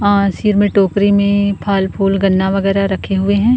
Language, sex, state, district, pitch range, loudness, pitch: Hindi, female, Chhattisgarh, Korba, 195-200 Hz, -14 LUFS, 200 Hz